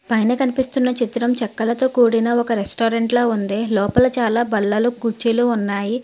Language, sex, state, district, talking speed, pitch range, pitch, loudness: Telugu, female, Telangana, Hyderabad, 140 wpm, 225-245 Hz, 235 Hz, -18 LUFS